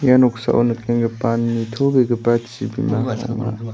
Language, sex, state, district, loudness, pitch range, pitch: Garo, male, Meghalaya, West Garo Hills, -19 LUFS, 115-125 Hz, 120 Hz